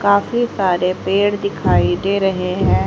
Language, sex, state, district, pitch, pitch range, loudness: Hindi, female, Haryana, Jhajjar, 195 Hz, 180-200 Hz, -17 LUFS